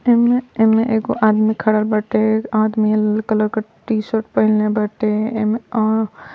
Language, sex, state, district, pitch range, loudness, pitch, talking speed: Bhojpuri, female, Uttar Pradesh, Ghazipur, 215-220 Hz, -17 LUFS, 220 Hz, 150 wpm